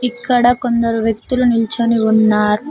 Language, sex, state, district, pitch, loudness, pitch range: Telugu, female, Telangana, Mahabubabad, 230 Hz, -15 LUFS, 220-245 Hz